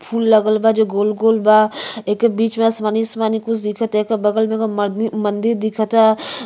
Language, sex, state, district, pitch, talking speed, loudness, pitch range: Bhojpuri, female, Uttar Pradesh, Ghazipur, 220 Hz, 175 wpm, -17 LUFS, 215-225 Hz